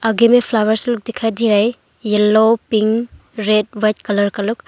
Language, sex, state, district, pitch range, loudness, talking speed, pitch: Hindi, female, Arunachal Pradesh, Longding, 215-230 Hz, -16 LUFS, 190 wpm, 220 Hz